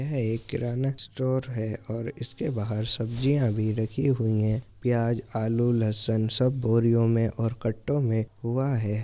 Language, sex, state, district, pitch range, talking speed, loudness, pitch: Hindi, male, Uttar Pradesh, Jyotiba Phule Nagar, 110-130 Hz, 150 wpm, -27 LUFS, 115 Hz